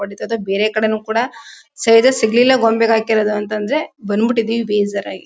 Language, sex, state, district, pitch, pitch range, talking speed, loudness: Kannada, female, Karnataka, Mysore, 225 Hz, 210-235 Hz, 150 wpm, -16 LUFS